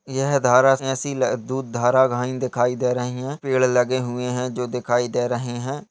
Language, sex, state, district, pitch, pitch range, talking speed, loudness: Hindi, male, Chhattisgarh, Jashpur, 125 Hz, 125-130 Hz, 195 wpm, -21 LUFS